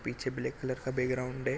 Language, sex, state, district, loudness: Hindi, male, Chhattisgarh, Korba, -34 LUFS